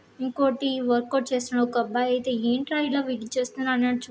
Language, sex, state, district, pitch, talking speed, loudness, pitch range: Telugu, female, Andhra Pradesh, Srikakulam, 255 Hz, 175 wpm, -25 LUFS, 245-265 Hz